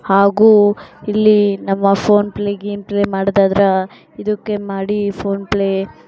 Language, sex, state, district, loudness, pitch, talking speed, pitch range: Kannada, female, Karnataka, Shimoga, -15 LUFS, 200 Hz, 100 wpm, 195-205 Hz